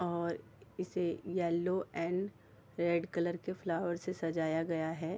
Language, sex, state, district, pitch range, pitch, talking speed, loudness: Hindi, female, Bihar, Sitamarhi, 165-180 Hz, 170 Hz, 140 wpm, -36 LUFS